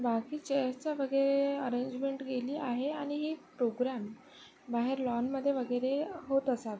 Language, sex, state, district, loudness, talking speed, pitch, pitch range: Marathi, female, Maharashtra, Sindhudurg, -33 LUFS, 150 wpm, 270 Hz, 245-280 Hz